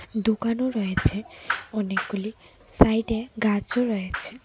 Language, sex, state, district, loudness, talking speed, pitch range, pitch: Bengali, female, Tripura, West Tripura, -25 LUFS, 110 wpm, 205-230 Hz, 220 Hz